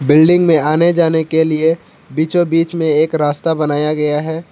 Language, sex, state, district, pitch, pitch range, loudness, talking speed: Hindi, male, Jharkhand, Palamu, 160 Hz, 150-165 Hz, -14 LUFS, 185 wpm